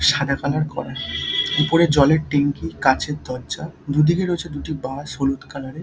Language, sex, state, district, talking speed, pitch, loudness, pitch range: Bengali, male, West Bengal, Dakshin Dinajpur, 155 wpm, 145 Hz, -21 LUFS, 135-150 Hz